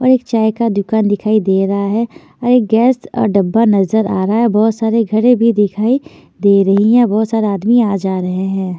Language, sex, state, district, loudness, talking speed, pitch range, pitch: Hindi, female, Chandigarh, Chandigarh, -13 LUFS, 225 wpm, 200-230 Hz, 220 Hz